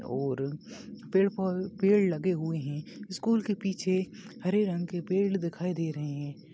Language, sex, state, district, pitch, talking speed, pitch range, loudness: Hindi, male, Maharashtra, Nagpur, 185 Hz, 165 wpm, 160-205 Hz, -30 LUFS